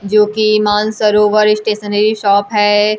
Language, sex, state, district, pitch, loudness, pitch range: Hindi, female, Bihar, Kaimur, 210 Hz, -12 LUFS, 210-215 Hz